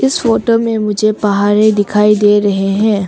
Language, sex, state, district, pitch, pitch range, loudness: Hindi, female, Arunachal Pradesh, Longding, 210 Hz, 205-220 Hz, -12 LUFS